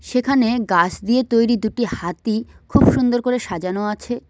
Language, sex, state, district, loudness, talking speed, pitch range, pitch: Bengali, female, West Bengal, Cooch Behar, -19 LUFS, 155 wpm, 205-245 Hz, 230 Hz